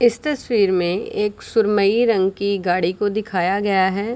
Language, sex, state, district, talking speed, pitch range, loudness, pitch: Hindi, female, Bihar, Sitamarhi, 175 wpm, 190-220 Hz, -19 LUFS, 200 Hz